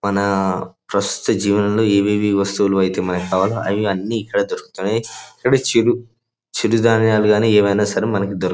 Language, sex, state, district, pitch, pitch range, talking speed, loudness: Telugu, male, Andhra Pradesh, Anantapur, 105 Hz, 100-115 Hz, 140 wpm, -18 LUFS